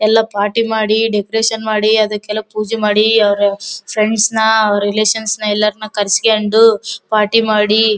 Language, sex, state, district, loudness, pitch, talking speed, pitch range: Kannada, female, Karnataka, Bellary, -14 LUFS, 215 Hz, 145 wpm, 210-220 Hz